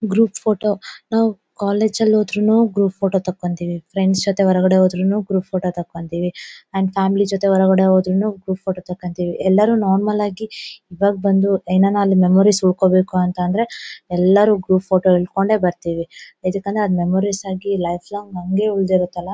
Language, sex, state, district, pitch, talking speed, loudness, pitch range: Kannada, female, Karnataka, Bellary, 190 Hz, 140 wpm, -18 LUFS, 185-205 Hz